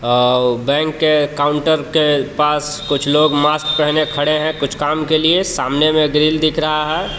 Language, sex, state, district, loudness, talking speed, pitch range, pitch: Hindi, male, Jharkhand, Palamu, -15 LUFS, 185 wpm, 145-155 Hz, 150 Hz